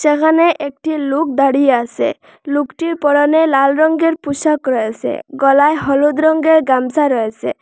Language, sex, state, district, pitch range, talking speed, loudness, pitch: Bengali, female, Assam, Hailakandi, 275-315 Hz, 125 wpm, -14 LUFS, 290 Hz